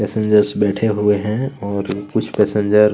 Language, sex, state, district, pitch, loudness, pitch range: Hindi, male, Chhattisgarh, Kabirdham, 105 Hz, -17 LUFS, 100-110 Hz